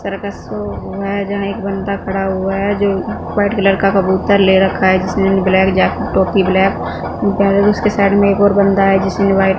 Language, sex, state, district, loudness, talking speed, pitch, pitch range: Hindi, female, Punjab, Fazilka, -14 LUFS, 220 wpm, 195 Hz, 190-200 Hz